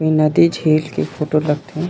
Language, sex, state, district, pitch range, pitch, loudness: Chhattisgarhi, male, Chhattisgarh, Raigarh, 150-160 Hz, 155 Hz, -17 LUFS